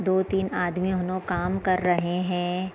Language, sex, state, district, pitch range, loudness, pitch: Hindi, female, Bihar, East Champaran, 180-185 Hz, -26 LUFS, 185 Hz